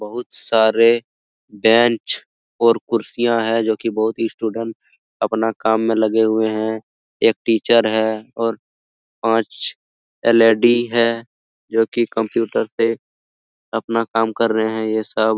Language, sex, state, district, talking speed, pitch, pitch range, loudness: Hindi, male, Uttar Pradesh, Hamirpur, 140 wpm, 115 Hz, 110-115 Hz, -18 LUFS